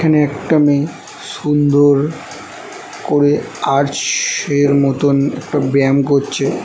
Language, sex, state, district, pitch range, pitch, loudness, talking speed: Bengali, male, West Bengal, North 24 Parganas, 140-150 Hz, 145 Hz, -15 LUFS, 100 wpm